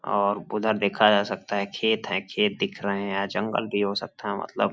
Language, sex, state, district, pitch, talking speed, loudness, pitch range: Hindi, male, Uttar Pradesh, Gorakhpur, 105 Hz, 230 wpm, -25 LUFS, 100-110 Hz